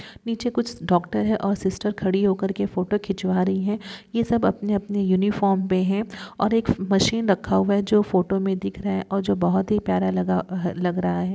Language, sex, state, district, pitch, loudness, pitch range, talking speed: Hindi, female, Bihar, East Champaran, 195 Hz, -23 LUFS, 185-210 Hz, 205 wpm